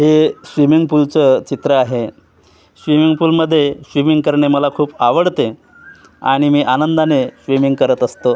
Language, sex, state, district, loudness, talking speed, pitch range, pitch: Marathi, male, Maharashtra, Gondia, -14 LUFS, 135 wpm, 140-160 Hz, 150 Hz